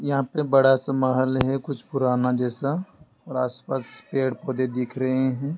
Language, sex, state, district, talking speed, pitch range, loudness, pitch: Hindi, male, Madhya Pradesh, Dhar, 170 wpm, 130-135 Hz, -24 LUFS, 130 Hz